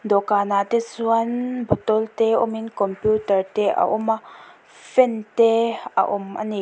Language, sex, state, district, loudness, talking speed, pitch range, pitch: Mizo, female, Mizoram, Aizawl, -21 LUFS, 165 wpm, 205-230 Hz, 220 Hz